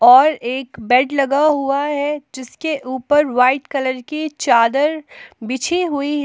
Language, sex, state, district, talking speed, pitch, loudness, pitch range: Hindi, female, Jharkhand, Palamu, 145 wpm, 280 Hz, -17 LUFS, 260-300 Hz